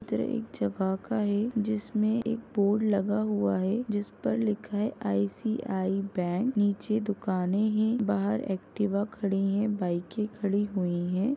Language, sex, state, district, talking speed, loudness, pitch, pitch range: Hindi, female, Uttar Pradesh, Budaun, 145 wpm, -29 LUFS, 205 Hz, 190-215 Hz